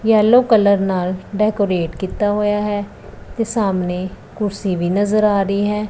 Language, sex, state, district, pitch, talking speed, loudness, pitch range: Punjabi, female, Punjab, Pathankot, 205 Hz, 155 wpm, -17 LUFS, 190-210 Hz